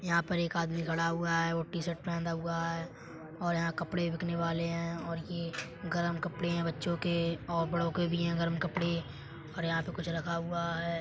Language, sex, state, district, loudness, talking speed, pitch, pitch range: Hindi, male, Uttar Pradesh, Etah, -34 LUFS, 220 wpm, 170 Hz, 165-170 Hz